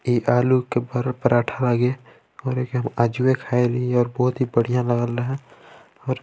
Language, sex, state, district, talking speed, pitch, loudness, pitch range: Chhattisgarhi, male, Chhattisgarh, Balrampur, 165 wpm, 125 Hz, -22 LUFS, 120-130 Hz